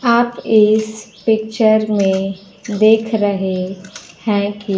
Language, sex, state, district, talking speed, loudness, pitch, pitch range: Hindi, female, Bihar, Kaimur, 115 wpm, -16 LUFS, 210 Hz, 195-220 Hz